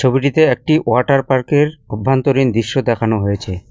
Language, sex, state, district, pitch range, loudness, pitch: Bengali, male, West Bengal, Cooch Behar, 115-140 Hz, -15 LUFS, 130 Hz